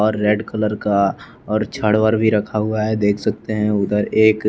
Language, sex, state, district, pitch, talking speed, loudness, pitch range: Hindi, male, Bihar, West Champaran, 105 Hz, 215 wpm, -18 LUFS, 105-110 Hz